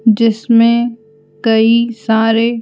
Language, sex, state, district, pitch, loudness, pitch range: Hindi, female, Madhya Pradesh, Bhopal, 225 Hz, -13 LUFS, 220-230 Hz